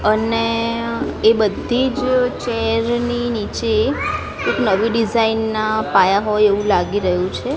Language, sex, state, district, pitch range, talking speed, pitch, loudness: Gujarati, female, Gujarat, Gandhinagar, 215-235 Hz, 125 wpm, 225 Hz, -18 LUFS